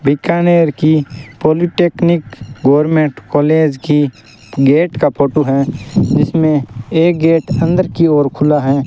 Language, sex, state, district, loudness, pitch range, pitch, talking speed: Hindi, male, Rajasthan, Bikaner, -13 LUFS, 140-165 Hz, 150 Hz, 120 wpm